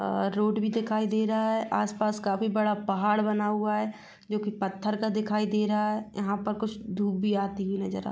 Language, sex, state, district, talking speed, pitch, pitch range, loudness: Hindi, female, Chhattisgarh, Rajnandgaon, 235 wpm, 210 Hz, 205-215 Hz, -28 LUFS